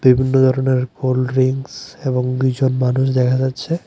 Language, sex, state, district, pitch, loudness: Bengali, male, Tripura, West Tripura, 130 Hz, -17 LUFS